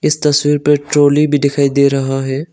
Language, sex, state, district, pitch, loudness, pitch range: Hindi, male, Arunachal Pradesh, Longding, 145 Hz, -13 LUFS, 135-145 Hz